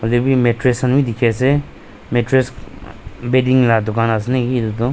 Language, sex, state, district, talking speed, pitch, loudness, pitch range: Nagamese, male, Nagaland, Dimapur, 160 wpm, 120 Hz, -16 LUFS, 115-130 Hz